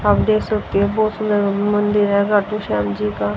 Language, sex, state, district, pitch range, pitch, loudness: Hindi, female, Haryana, Rohtak, 200-210 Hz, 205 Hz, -18 LUFS